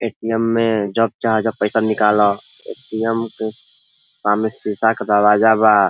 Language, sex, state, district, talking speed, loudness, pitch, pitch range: Bhojpuri, male, Uttar Pradesh, Ghazipur, 140 wpm, -17 LUFS, 110 Hz, 105-115 Hz